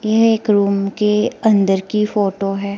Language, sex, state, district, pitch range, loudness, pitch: Hindi, female, Himachal Pradesh, Shimla, 200-220 Hz, -16 LUFS, 210 Hz